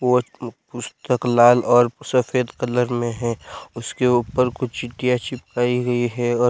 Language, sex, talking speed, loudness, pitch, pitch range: Hindi, male, 150 wpm, -20 LUFS, 125 Hz, 120-125 Hz